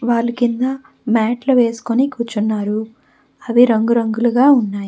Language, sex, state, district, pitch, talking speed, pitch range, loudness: Telugu, female, Telangana, Hyderabad, 235 Hz, 100 wpm, 225-245 Hz, -16 LUFS